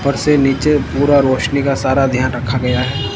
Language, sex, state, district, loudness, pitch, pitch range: Hindi, male, Punjab, Kapurthala, -15 LUFS, 135 Hz, 130-140 Hz